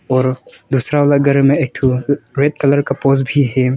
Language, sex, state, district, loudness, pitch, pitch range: Hindi, male, Arunachal Pradesh, Longding, -15 LUFS, 135 Hz, 130-140 Hz